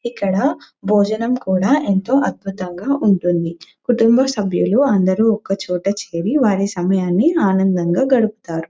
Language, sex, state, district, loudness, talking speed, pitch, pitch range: Telugu, female, Telangana, Nalgonda, -17 LUFS, 105 wpm, 200 Hz, 185-235 Hz